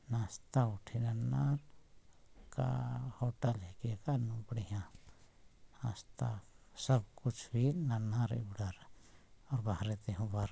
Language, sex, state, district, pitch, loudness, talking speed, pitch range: Sadri, male, Chhattisgarh, Jashpur, 115 Hz, -39 LUFS, 140 wpm, 105-125 Hz